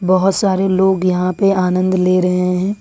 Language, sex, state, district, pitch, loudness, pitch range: Hindi, female, Jharkhand, Ranchi, 185 Hz, -15 LUFS, 180-190 Hz